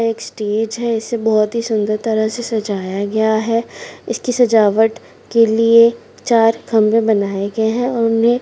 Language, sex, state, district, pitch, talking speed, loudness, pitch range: Hindi, female, Rajasthan, Churu, 225 Hz, 150 wpm, -16 LUFS, 215-230 Hz